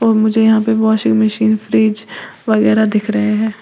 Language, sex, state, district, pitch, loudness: Hindi, female, Uttar Pradesh, Lalitpur, 210 Hz, -13 LUFS